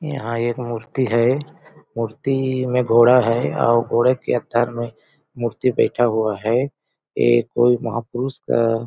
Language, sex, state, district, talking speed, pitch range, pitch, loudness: Hindi, male, Chhattisgarh, Balrampur, 150 wpm, 115-130 Hz, 120 Hz, -19 LUFS